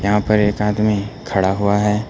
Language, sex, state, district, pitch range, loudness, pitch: Hindi, male, Uttar Pradesh, Lucknow, 100-105 Hz, -17 LUFS, 105 Hz